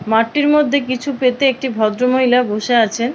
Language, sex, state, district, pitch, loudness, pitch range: Bengali, female, West Bengal, Purulia, 250 Hz, -15 LUFS, 230-270 Hz